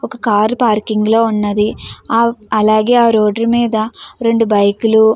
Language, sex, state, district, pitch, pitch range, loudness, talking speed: Telugu, female, Andhra Pradesh, Guntur, 220 Hz, 215-230 Hz, -13 LUFS, 150 wpm